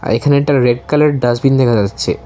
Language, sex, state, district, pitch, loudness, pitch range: Bengali, male, Tripura, West Tripura, 130 Hz, -13 LUFS, 120-145 Hz